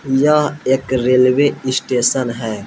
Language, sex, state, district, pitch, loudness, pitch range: Hindi, male, Jharkhand, Palamu, 130 Hz, -15 LUFS, 125-135 Hz